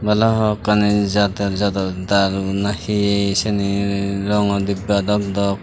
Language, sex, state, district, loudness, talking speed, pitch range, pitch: Chakma, male, Tripura, Dhalai, -18 LUFS, 115 wpm, 100-105 Hz, 100 Hz